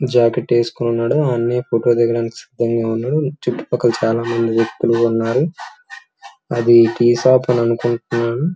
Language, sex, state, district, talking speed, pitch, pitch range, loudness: Telugu, male, Andhra Pradesh, Srikakulam, 65 wpm, 120 Hz, 115-125 Hz, -17 LUFS